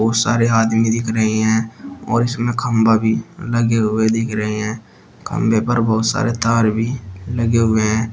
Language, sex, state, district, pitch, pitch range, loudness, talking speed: Hindi, male, Uttar Pradesh, Shamli, 115 Hz, 110-115 Hz, -17 LUFS, 175 wpm